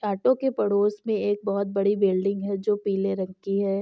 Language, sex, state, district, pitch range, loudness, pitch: Hindi, female, Uttar Pradesh, Jyotiba Phule Nagar, 195-205 Hz, -25 LUFS, 200 Hz